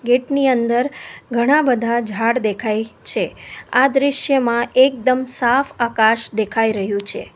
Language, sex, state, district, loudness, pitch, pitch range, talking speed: Gujarati, female, Gujarat, Valsad, -17 LUFS, 240 Hz, 225-260 Hz, 130 wpm